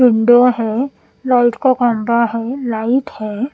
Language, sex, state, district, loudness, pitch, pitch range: Hindi, female, Punjab, Pathankot, -15 LUFS, 240 Hz, 230-255 Hz